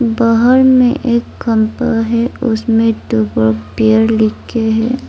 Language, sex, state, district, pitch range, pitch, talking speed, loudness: Hindi, female, Arunachal Pradesh, Lower Dibang Valley, 220-240 Hz, 230 Hz, 120 wpm, -13 LUFS